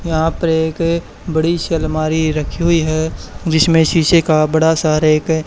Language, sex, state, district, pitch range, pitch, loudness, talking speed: Hindi, male, Haryana, Charkhi Dadri, 155-165 Hz, 160 Hz, -15 LUFS, 175 wpm